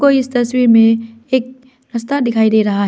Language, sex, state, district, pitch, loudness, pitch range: Hindi, female, Arunachal Pradesh, Lower Dibang Valley, 240 Hz, -14 LUFS, 225-260 Hz